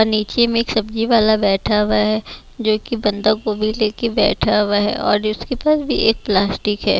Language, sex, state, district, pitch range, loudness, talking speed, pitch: Hindi, female, Bihar, West Champaran, 210-225 Hz, -17 LUFS, 205 wpm, 215 Hz